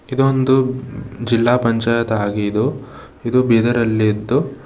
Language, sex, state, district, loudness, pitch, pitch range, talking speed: Kannada, male, Karnataka, Bidar, -17 LUFS, 120 Hz, 115-130 Hz, 90 wpm